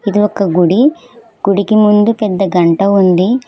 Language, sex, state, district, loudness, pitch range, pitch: Telugu, female, Telangana, Hyderabad, -11 LUFS, 195-225 Hz, 205 Hz